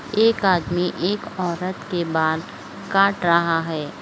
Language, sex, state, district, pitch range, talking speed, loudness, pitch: Hindi, female, Uttar Pradesh, Etah, 165-195 Hz, 135 wpm, -21 LUFS, 180 Hz